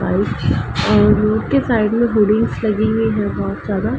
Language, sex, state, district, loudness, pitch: Hindi, female, Uttar Pradesh, Ghazipur, -16 LUFS, 210 Hz